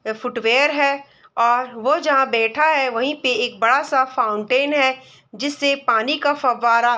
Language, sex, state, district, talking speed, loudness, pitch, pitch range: Hindi, female, Bihar, East Champaran, 170 wpm, -18 LUFS, 265 Hz, 240-285 Hz